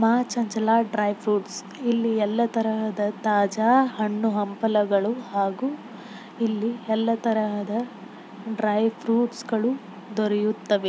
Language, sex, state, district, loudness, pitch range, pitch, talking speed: Kannada, female, Karnataka, Belgaum, -24 LUFS, 210-230 Hz, 220 Hz, 100 wpm